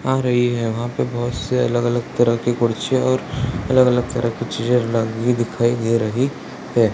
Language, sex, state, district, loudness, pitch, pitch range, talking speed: Hindi, male, Bihar, Purnia, -19 LUFS, 120 Hz, 115-125 Hz, 180 wpm